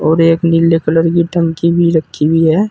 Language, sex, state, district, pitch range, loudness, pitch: Hindi, male, Uttar Pradesh, Saharanpur, 160-170 Hz, -12 LUFS, 165 Hz